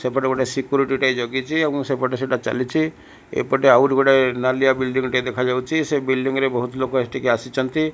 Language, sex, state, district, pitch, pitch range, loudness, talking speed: Odia, male, Odisha, Malkangiri, 130 Hz, 130-135 Hz, -20 LUFS, 165 wpm